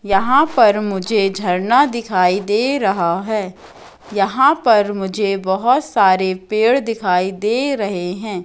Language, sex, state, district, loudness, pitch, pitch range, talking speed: Hindi, female, Madhya Pradesh, Katni, -16 LUFS, 205 Hz, 190-230 Hz, 130 wpm